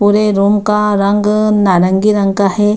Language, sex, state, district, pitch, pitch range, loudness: Hindi, female, Bihar, Kishanganj, 205 Hz, 200-210 Hz, -12 LUFS